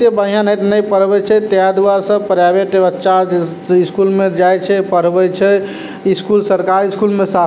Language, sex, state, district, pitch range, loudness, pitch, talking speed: Maithili, male, Bihar, Samastipur, 185-200 Hz, -13 LUFS, 195 Hz, 175 wpm